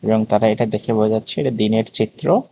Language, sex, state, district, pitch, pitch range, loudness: Bengali, male, Tripura, West Tripura, 110 Hz, 110-120 Hz, -18 LUFS